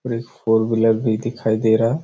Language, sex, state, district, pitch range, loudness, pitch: Hindi, male, Chhattisgarh, Raigarh, 110-115 Hz, -19 LUFS, 115 Hz